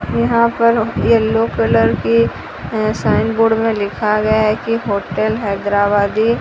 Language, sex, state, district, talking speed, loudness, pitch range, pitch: Hindi, female, Odisha, Sambalpur, 140 wpm, -15 LUFS, 200-225 Hz, 215 Hz